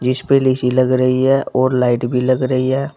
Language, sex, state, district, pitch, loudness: Hindi, male, Uttar Pradesh, Saharanpur, 130 Hz, -15 LUFS